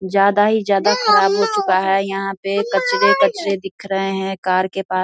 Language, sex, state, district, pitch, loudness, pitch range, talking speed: Hindi, female, Bihar, Saharsa, 195 Hz, -17 LUFS, 195-210 Hz, 200 wpm